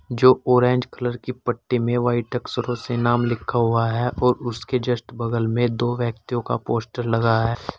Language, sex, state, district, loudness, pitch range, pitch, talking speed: Hindi, male, Uttar Pradesh, Saharanpur, -22 LUFS, 115-125 Hz, 120 Hz, 185 wpm